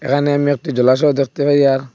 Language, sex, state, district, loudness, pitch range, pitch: Bengali, male, Assam, Hailakandi, -15 LUFS, 135-145 Hz, 140 Hz